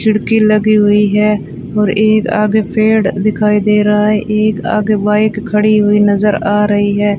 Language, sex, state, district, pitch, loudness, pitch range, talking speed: Hindi, female, Rajasthan, Bikaner, 210 Hz, -12 LUFS, 210-215 Hz, 175 wpm